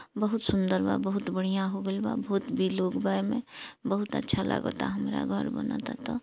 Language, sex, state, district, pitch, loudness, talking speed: Bhojpuri, female, Bihar, East Champaran, 195 Hz, -30 LUFS, 190 wpm